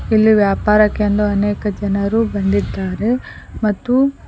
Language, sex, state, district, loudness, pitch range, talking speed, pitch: Kannada, female, Karnataka, Koppal, -16 LUFS, 200-220 Hz, 85 wpm, 210 Hz